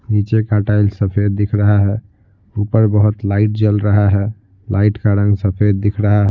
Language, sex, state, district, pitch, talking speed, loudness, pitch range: Hindi, male, Bihar, Patna, 105 Hz, 190 wpm, -15 LUFS, 100-105 Hz